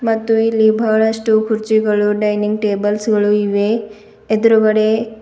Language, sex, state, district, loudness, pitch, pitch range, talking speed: Kannada, female, Karnataka, Bidar, -15 LUFS, 220 Hz, 210-220 Hz, 105 wpm